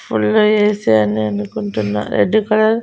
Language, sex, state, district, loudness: Telugu, female, Andhra Pradesh, Annamaya, -16 LUFS